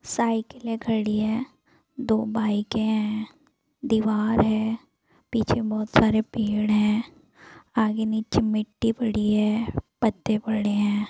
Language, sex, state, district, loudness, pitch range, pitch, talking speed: Hindi, female, Bihar, Gaya, -24 LUFS, 215-225 Hz, 220 Hz, 115 wpm